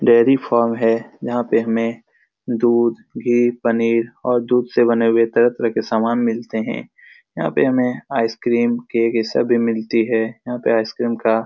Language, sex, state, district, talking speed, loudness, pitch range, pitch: Hindi, male, Bihar, Supaul, 175 wpm, -18 LUFS, 115-120 Hz, 115 Hz